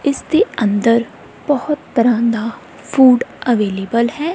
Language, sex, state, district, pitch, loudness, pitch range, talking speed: Punjabi, female, Punjab, Kapurthala, 235 Hz, -16 LUFS, 230-285 Hz, 125 wpm